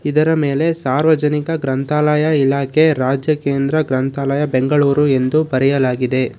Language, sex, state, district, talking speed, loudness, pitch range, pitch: Kannada, male, Karnataka, Bangalore, 105 wpm, -16 LUFS, 135-155 Hz, 140 Hz